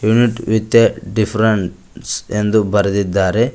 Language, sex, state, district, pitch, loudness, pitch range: Kannada, male, Karnataka, Koppal, 110 Hz, -16 LUFS, 100-110 Hz